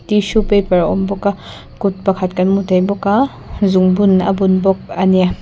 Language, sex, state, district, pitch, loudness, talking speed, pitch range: Mizo, female, Mizoram, Aizawl, 195 Hz, -15 LUFS, 175 wpm, 185-200 Hz